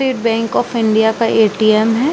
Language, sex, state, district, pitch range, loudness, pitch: Hindi, female, Chhattisgarh, Bilaspur, 220-235 Hz, -14 LUFS, 225 Hz